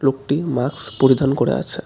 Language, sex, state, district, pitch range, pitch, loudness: Bengali, male, West Bengal, Darjeeling, 130-140 Hz, 135 Hz, -19 LUFS